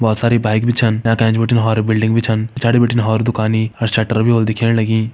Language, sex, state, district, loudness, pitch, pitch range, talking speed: Hindi, male, Uttarakhand, Uttarkashi, -15 LUFS, 115 Hz, 110-115 Hz, 255 wpm